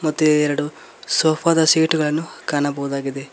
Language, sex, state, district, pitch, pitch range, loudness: Kannada, male, Karnataka, Koppal, 150 Hz, 145-160 Hz, -19 LUFS